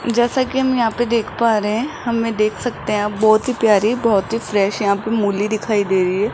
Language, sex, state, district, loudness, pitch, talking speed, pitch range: Hindi, male, Rajasthan, Jaipur, -18 LUFS, 220 Hz, 265 wpm, 210-235 Hz